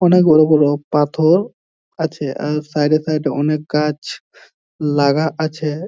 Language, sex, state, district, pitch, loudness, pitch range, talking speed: Bengali, male, West Bengal, Jhargram, 155 Hz, -16 LUFS, 150-160 Hz, 130 wpm